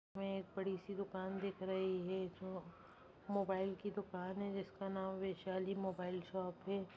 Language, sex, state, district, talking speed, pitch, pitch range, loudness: Hindi, female, Bihar, Vaishali, 165 wpm, 190 Hz, 185-195 Hz, -44 LUFS